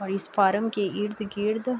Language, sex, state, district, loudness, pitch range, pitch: Urdu, female, Andhra Pradesh, Anantapur, -26 LUFS, 200-215 Hz, 205 Hz